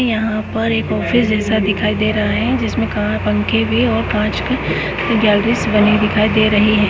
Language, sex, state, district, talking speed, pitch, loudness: Hindi, female, Goa, North and South Goa, 175 wpm, 210 Hz, -15 LUFS